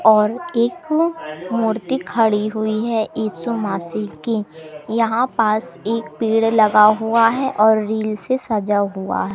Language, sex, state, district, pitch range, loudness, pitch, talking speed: Hindi, female, Madhya Pradesh, Umaria, 210-230 Hz, -18 LUFS, 220 Hz, 135 wpm